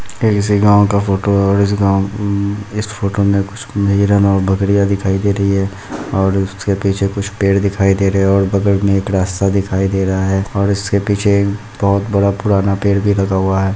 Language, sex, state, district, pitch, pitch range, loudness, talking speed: Hindi, male, Bihar, Muzaffarpur, 100 Hz, 95-100 Hz, -15 LUFS, 215 wpm